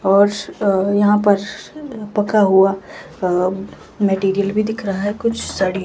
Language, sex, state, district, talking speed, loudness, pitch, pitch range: Hindi, female, Himachal Pradesh, Shimla, 165 wpm, -17 LUFS, 200 Hz, 195-210 Hz